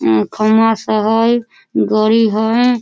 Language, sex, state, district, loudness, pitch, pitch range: Maithili, female, Bihar, Samastipur, -14 LUFS, 220 Hz, 215-230 Hz